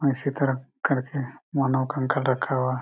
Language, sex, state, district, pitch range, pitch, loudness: Hindi, male, Chhattisgarh, Raigarh, 130-140 Hz, 135 Hz, -26 LUFS